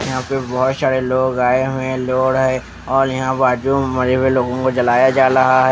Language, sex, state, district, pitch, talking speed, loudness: Hindi, male, Bihar, West Champaran, 130 Hz, 220 wpm, -16 LUFS